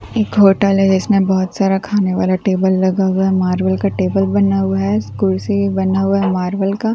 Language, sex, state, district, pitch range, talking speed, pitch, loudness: Hindi, female, Bihar, Katihar, 190-200 Hz, 225 wpm, 195 Hz, -15 LUFS